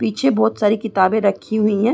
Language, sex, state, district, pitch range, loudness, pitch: Hindi, female, Uttar Pradesh, Gorakhpur, 205-225 Hz, -17 LUFS, 220 Hz